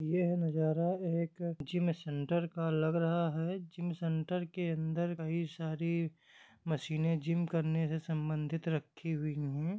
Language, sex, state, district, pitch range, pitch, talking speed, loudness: Hindi, male, Jharkhand, Sahebganj, 160-170 Hz, 165 Hz, 145 wpm, -35 LUFS